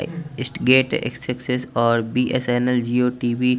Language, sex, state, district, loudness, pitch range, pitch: Hindi, male, Chandigarh, Chandigarh, -20 LUFS, 120-130 Hz, 125 Hz